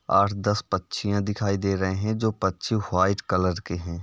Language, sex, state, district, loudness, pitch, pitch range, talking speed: Hindi, male, Uttar Pradesh, Varanasi, -25 LUFS, 100 Hz, 95-105 Hz, 195 wpm